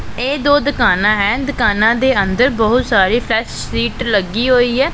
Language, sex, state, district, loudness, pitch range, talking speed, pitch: Punjabi, female, Punjab, Pathankot, -14 LUFS, 205-260 Hz, 170 wpm, 235 Hz